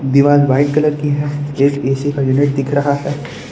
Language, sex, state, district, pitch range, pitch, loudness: Hindi, male, Gujarat, Valsad, 140-145 Hz, 145 Hz, -15 LUFS